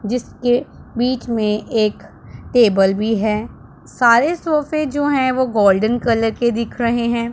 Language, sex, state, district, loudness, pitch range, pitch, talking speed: Hindi, female, Punjab, Pathankot, -17 LUFS, 220-255 Hz, 235 Hz, 145 wpm